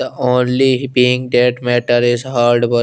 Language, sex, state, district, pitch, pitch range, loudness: Hindi, male, Chandigarh, Chandigarh, 125 Hz, 120-125 Hz, -14 LUFS